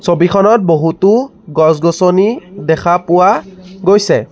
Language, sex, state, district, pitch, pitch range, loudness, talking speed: Assamese, male, Assam, Sonitpur, 185 Hz, 170-200 Hz, -11 LUFS, 85 wpm